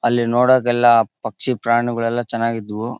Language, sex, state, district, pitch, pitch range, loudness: Kannada, male, Karnataka, Bellary, 120 Hz, 115-120 Hz, -18 LUFS